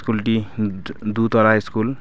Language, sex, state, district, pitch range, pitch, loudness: Bengali, male, West Bengal, Alipurduar, 105-115 Hz, 110 Hz, -20 LUFS